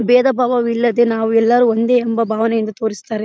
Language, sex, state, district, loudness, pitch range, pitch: Kannada, female, Karnataka, Bellary, -15 LUFS, 225-240 Hz, 230 Hz